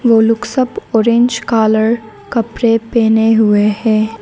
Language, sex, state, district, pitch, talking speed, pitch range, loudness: Hindi, female, Arunachal Pradesh, Lower Dibang Valley, 225 Hz, 130 wpm, 220-235 Hz, -13 LUFS